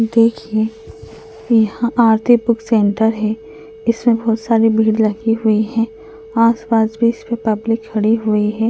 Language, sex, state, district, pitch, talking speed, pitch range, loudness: Hindi, female, Uttarakhand, Tehri Garhwal, 225 Hz, 140 wpm, 215-230 Hz, -16 LUFS